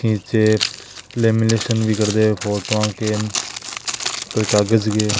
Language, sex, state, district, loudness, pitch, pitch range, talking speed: Marwari, male, Rajasthan, Nagaur, -19 LUFS, 110 Hz, 105-110 Hz, 70 wpm